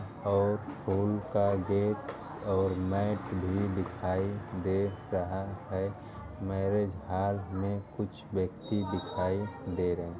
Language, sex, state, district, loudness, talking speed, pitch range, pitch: Hindi, male, Uttar Pradesh, Ghazipur, -32 LUFS, 115 wpm, 95-105 Hz, 100 Hz